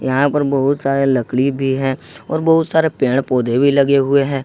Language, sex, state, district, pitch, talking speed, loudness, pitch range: Hindi, male, Jharkhand, Ranchi, 135 Hz, 215 wpm, -16 LUFS, 135-140 Hz